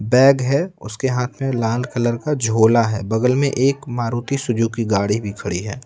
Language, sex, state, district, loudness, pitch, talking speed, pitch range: Hindi, male, Bihar, Patna, -19 LUFS, 120 Hz, 195 wpm, 110-130 Hz